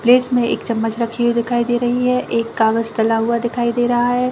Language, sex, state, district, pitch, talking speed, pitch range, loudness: Hindi, female, Chhattisgarh, Raigarh, 235 Hz, 250 wpm, 230-245 Hz, -17 LUFS